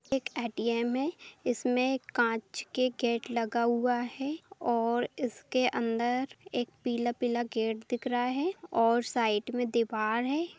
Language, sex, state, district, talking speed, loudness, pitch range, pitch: Bhojpuri, female, Bihar, Saran, 135 wpm, -31 LUFS, 235-255 Hz, 245 Hz